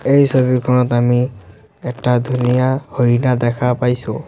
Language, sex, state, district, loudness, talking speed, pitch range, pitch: Assamese, male, Assam, Sonitpur, -16 LUFS, 110 wpm, 120-125 Hz, 125 Hz